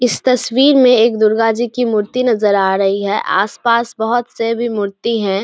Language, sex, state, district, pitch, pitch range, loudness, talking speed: Hindi, female, Bihar, Samastipur, 230 Hz, 205-240 Hz, -14 LUFS, 200 wpm